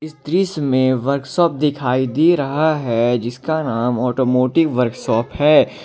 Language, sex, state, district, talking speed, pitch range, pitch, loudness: Hindi, male, Jharkhand, Ranchi, 135 wpm, 125-155 Hz, 135 Hz, -17 LUFS